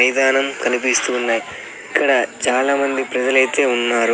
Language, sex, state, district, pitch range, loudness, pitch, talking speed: Telugu, male, Andhra Pradesh, Sri Satya Sai, 125-135 Hz, -17 LUFS, 125 Hz, 100 wpm